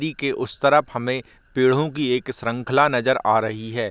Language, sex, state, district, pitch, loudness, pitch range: Hindi, male, Bihar, Darbhanga, 130 Hz, -21 LUFS, 120-140 Hz